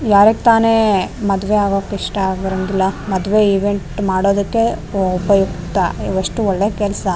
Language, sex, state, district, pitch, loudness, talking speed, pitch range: Kannada, female, Karnataka, Raichur, 195 Hz, -16 LUFS, 100 wpm, 190-210 Hz